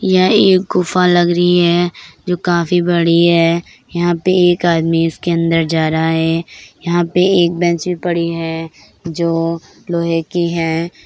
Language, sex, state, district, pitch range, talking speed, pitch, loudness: Hindi, female, Bihar, Begusarai, 165-175 Hz, 165 wpm, 170 Hz, -14 LUFS